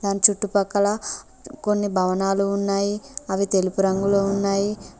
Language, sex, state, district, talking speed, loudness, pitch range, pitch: Telugu, female, Telangana, Mahabubabad, 110 wpm, -22 LUFS, 195-205 Hz, 200 Hz